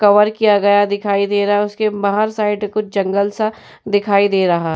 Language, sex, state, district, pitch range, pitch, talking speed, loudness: Hindi, female, Uttar Pradesh, Jyotiba Phule Nagar, 200-210 Hz, 205 Hz, 200 wpm, -16 LUFS